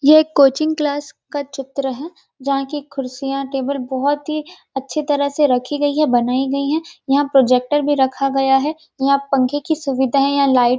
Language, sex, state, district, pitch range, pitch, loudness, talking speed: Hindi, female, Chhattisgarh, Rajnandgaon, 270-295 Hz, 280 Hz, -18 LUFS, 200 wpm